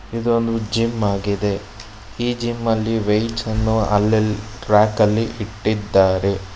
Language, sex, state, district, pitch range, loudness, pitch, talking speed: Kannada, male, Karnataka, Bangalore, 105-115 Hz, -19 LUFS, 110 Hz, 110 wpm